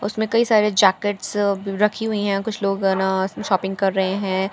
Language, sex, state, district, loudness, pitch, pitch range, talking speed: Hindi, female, Bihar, Katihar, -20 LUFS, 200 Hz, 190-210 Hz, 210 wpm